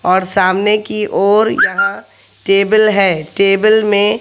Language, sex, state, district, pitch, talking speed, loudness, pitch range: Hindi, male, Haryana, Jhajjar, 205 Hz, 130 wpm, -12 LUFS, 195-215 Hz